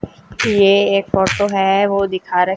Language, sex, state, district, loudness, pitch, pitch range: Hindi, female, Haryana, Jhajjar, -15 LUFS, 195 Hz, 190-200 Hz